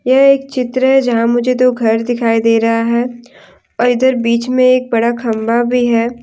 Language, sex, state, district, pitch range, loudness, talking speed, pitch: Hindi, female, Jharkhand, Deoghar, 230-255 Hz, -13 LUFS, 200 wpm, 240 Hz